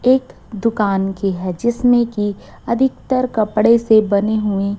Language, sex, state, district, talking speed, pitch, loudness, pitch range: Hindi, female, Chhattisgarh, Raipur, 140 wpm, 215 Hz, -17 LUFS, 200-235 Hz